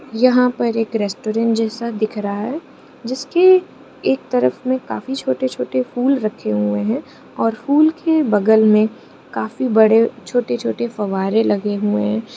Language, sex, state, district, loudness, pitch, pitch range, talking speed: Hindi, female, Arunachal Pradesh, Lower Dibang Valley, -18 LUFS, 220 Hz, 200-255 Hz, 140 wpm